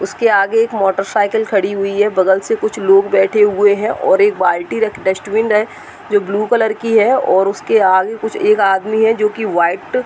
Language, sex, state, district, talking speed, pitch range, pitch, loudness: Hindi, female, Uttar Pradesh, Deoria, 210 wpm, 195-220 Hz, 205 Hz, -14 LUFS